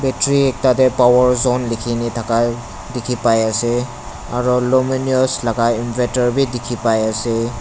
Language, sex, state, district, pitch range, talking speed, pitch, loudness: Nagamese, male, Nagaland, Dimapur, 115-125 Hz, 150 wpm, 120 Hz, -17 LUFS